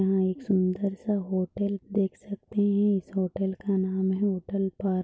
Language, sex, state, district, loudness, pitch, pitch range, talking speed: Hindi, female, Chhattisgarh, Bastar, -28 LUFS, 195 Hz, 190-200 Hz, 190 wpm